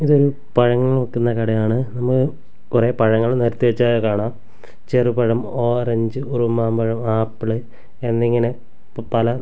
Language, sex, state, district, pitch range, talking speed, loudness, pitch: Malayalam, male, Kerala, Kasaragod, 115-125 Hz, 110 wpm, -19 LUFS, 120 Hz